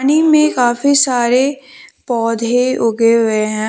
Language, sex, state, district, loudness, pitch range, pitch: Hindi, female, Jharkhand, Deoghar, -13 LUFS, 230-280 Hz, 245 Hz